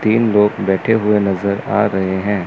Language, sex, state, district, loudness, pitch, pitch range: Hindi, male, Chandigarh, Chandigarh, -16 LUFS, 105 Hz, 95-105 Hz